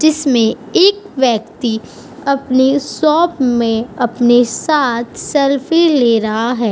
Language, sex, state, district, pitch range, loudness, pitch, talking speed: Hindi, female, Uttar Pradesh, Budaun, 235-300 Hz, -14 LUFS, 255 Hz, 105 wpm